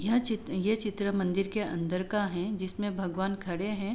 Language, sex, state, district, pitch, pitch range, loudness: Hindi, female, Uttar Pradesh, Jalaun, 200 Hz, 185-210 Hz, -31 LUFS